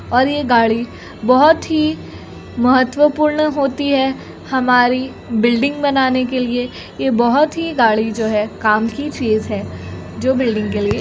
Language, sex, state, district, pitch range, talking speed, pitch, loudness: Hindi, female, Uttar Pradesh, Jyotiba Phule Nagar, 230-285 Hz, 145 wpm, 255 Hz, -16 LUFS